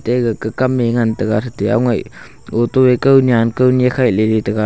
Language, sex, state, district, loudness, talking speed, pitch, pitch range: Wancho, male, Arunachal Pradesh, Longding, -15 LUFS, 105 wpm, 120 Hz, 110-125 Hz